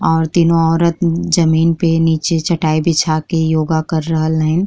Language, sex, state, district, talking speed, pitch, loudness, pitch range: Bhojpuri, female, Uttar Pradesh, Deoria, 165 wpm, 165 Hz, -14 LUFS, 160-170 Hz